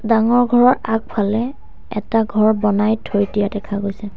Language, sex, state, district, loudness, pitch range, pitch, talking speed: Assamese, female, Assam, Sonitpur, -18 LUFS, 205-225 Hz, 215 Hz, 145 wpm